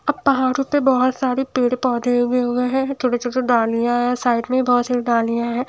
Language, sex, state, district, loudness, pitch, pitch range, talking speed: Hindi, female, Himachal Pradesh, Shimla, -19 LUFS, 250 Hz, 245-260 Hz, 200 wpm